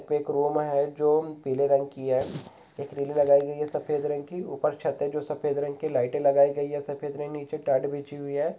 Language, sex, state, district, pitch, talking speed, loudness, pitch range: Hindi, male, Goa, North and South Goa, 145 Hz, 240 wpm, -27 LUFS, 140-150 Hz